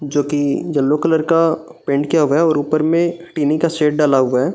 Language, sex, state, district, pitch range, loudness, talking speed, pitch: Hindi, male, Bihar, Gaya, 145-165 Hz, -16 LUFS, 235 wpm, 150 Hz